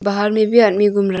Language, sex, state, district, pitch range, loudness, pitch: Hindi, female, Arunachal Pradesh, Longding, 200-215 Hz, -15 LUFS, 205 Hz